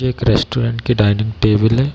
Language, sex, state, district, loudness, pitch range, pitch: Hindi, male, Bihar, Darbhanga, -16 LUFS, 110-125 Hz, 115 Hz